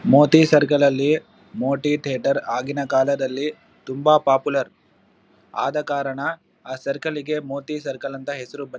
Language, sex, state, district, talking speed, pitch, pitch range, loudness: Kannada, male, Karnataka, Bellary, 115 wpm, 140 Hz, 135-150 Hz, -21 LUFS